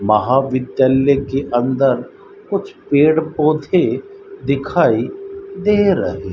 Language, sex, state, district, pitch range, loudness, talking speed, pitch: Hindi, male, Rajasthan, Bikaner, 130-200 Hz, -16 LUFS, 95 wpm, 145 Hz